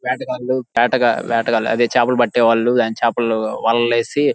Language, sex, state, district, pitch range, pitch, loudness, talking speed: Telugu, male, Andhra Pradesh, Guntur, 115-125 Hz, 120 Hz, -17 LUFS, 110 wpm